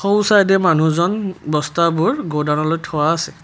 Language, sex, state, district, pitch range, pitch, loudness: Assamese, male, Assam, Kamrup Metropolitan, 155-195 Hz, 170 Hz, -17 LUFS